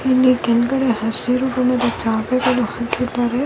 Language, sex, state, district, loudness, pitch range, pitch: Kannada, female, Karnataka, Bellary, -18 LUFS, 235-255 Hz, 245 Hz